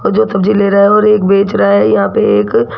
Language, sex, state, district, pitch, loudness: Hindi, female, Rajasthan, Jaipur, 200 Hz, -10 LUFS